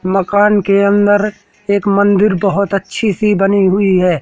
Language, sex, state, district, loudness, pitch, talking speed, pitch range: Hindi, male, Madhya Pradesh, Katni, -13 LUFS, 200 Hz, 155 wpm, 195-205 Hz